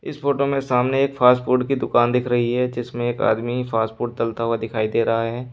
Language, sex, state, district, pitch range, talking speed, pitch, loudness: Hindi, male, Uttar Pradesh, Shamli, 115-125 Hz, 250 wpm, 120 Hz, -21 LUFS